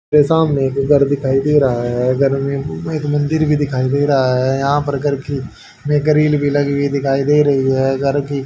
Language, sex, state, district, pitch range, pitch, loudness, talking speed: Hindi, male, Haryana, Rohtak, 135-145 Hz, 140 Hz, -16 LUFS, 235 wpm